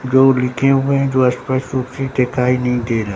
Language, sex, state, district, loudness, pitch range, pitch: Hindi, male, Bihar, Katihar, -16 LUFS, 125-135 Hz, 130 Hz